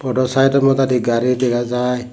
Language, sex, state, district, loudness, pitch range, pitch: Chakma, male, Tripura, Dhalai, -16 LUFS, 125-135 Hz, 125 Hz